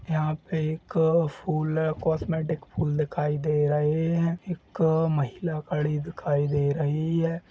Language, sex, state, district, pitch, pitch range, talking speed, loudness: Hindi, male, Chhattisgarh, Rajnandgaon, 155 Hz, 150-165 Hz, 160 wpm, -26 LUFS